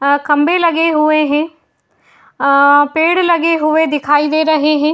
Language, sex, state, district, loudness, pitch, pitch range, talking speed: Hindi, female, Uttar Pradesh, Jalaun, -12 LUFS, 310 Hz, 295-320 Hz, 155 wpm